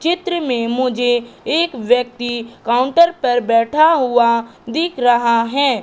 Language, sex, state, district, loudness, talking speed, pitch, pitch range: Hindi, female, Madhya Pradesh, Katni, -16 LUFS, 125 wpm, 245 Hz, 235-295 Hz